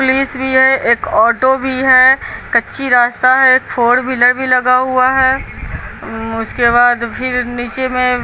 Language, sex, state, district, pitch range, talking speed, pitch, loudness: Hindi, female, Bihar, Patna, 245-260 Hz, 160 wpm, 255 Hz, -12 LUFS